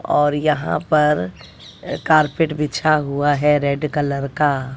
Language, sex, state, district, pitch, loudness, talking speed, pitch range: Hindi, female, Bihar, West Champaran, 145 Hz, -18 LUFS, 125 wpm, 140-150 Hz